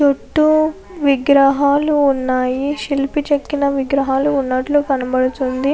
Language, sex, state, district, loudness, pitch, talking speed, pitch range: Telugu, female, Andhra Pradesh, Anantapur, -16 LUFS, 280 Hz, 85 wpm, 270-290 Hz